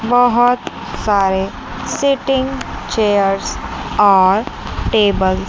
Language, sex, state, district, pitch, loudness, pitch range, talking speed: Hindi, female, Chandigarh, Chandigarh, 210 Hz, -16 LUFS, 195-245 Hz, 75 wpm